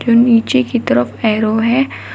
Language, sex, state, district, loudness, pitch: Hindi, female, Uttar Pradesh, Shamli, -14 LUFS, 225 Hz